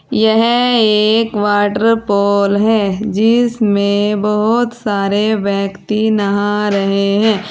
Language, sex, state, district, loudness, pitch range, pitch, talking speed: Hindi, female, Uttar Pradesh, Saharanpur, -14 LUFS, 200-220 Hz, 210 Hz, 90 wpm